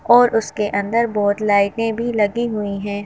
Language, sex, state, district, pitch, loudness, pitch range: Hindi, female, Madhya Pradesh, Bhopal, 210 Hz, -18 LUFS, 205-235 Hz